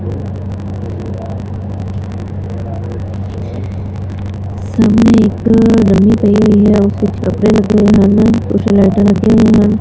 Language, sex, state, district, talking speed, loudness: Punjabi, female, Punjab, Fazilka, 90 wpm, -12 LUFS